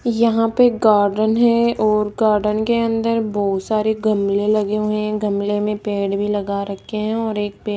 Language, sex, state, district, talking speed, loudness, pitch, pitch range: Hindi, female, Rajasthan, Jaipur, 195 wpm, -18 LUFS, 215 Hz, 205-225 Hz